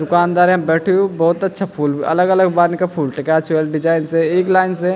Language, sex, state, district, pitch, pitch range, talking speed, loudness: Garhwali, male, Uttarakhand, Tehri Garhwal, 175 Hz, 160-185 Hz, 230 wpm, -15 LUFS